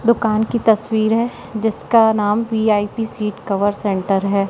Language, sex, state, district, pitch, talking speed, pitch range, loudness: Hindi, female, Madhya Pradesh, Katni, 220 Hz, 145 wpm, 205-225 Hz, -18 LUFS